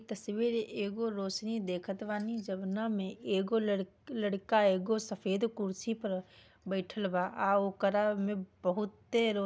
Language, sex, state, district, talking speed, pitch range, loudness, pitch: Bhojpuri, female, Bihar, Gopalganj, 125 wpm, 195-220 Hz, -34 LUFS, 205 Hz